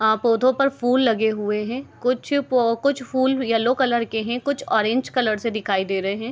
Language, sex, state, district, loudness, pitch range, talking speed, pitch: Hindi, female, Bihar, Begusarai, -21 LUFS, 220-260 Hz, 200 wpm, 240 Hz